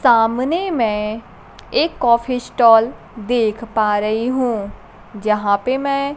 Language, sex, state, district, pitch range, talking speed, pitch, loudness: Hindi, female, Bihar, Kaimur, 215-255 Hz, 125 wpm, 230 Hz, -17 LUFS